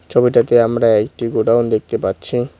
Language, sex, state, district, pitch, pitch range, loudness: Bengali, male, West Bengal, Cooch Behar, 115 Hz, 115-120 Hz, -16 LUFS